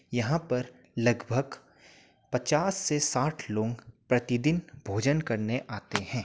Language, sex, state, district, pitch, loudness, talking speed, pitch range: Hindi, male, Uttar Pradesh, Jyotiba Phule Nagar, 125 Hz, -29 LUFS, 115 wpm, 115-150 Hz